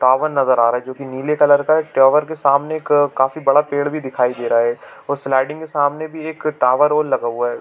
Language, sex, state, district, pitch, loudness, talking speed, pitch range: Hindi, male, Chhattisgarh, Bilaspur, 140 Hz, -17 LUFS, 270 wpm, 130-150 Hz